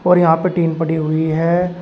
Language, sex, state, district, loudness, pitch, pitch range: Hindi, male, Uttar Pradesh, Shamli, -16 LUFS, 165 Hz, 160-180 Hz